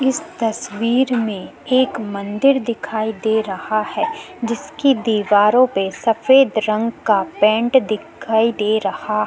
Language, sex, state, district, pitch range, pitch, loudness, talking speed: Hindi, female, Uttarakhand, Tehri Garhwal, 210-255 Hz, 220 Hz, -18 LUFS, 130 wpm